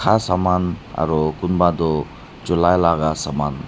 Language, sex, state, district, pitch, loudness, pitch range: Nagamese, male, Nagaland, Dimapur, 85 Hz, -19 LUFS, 80-90 Hz